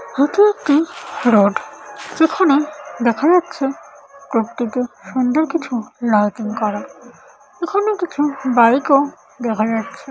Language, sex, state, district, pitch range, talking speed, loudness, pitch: Bengali, female, West Bengal, Paschim Medinipur, 235-305 Hz, 115 wpm, -17 LUFS, 275 Hz